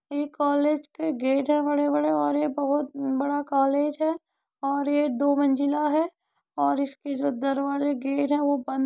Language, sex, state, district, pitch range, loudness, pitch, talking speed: Hindi, female, Uttar Pradesh, Muzaffarnagar, 275-295 Hz, -25 LUFS, 285 Hz, 185 wpm